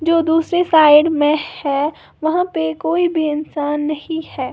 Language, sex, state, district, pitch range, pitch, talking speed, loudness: Hindi, female, Uttar Pradesh, Lalitpur, 300-325 Hz, 320 Hz, 160 wpm, -16 LUFS